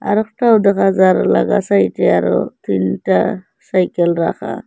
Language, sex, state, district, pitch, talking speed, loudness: Bengali, female, Assam, Hailakandi, 185 Hz, 105 wpm, -15 LUFS